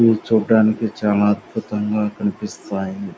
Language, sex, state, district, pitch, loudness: Telugu, male, Andhra Pradesh, Anantapur, 110 Hz, -19 LUFS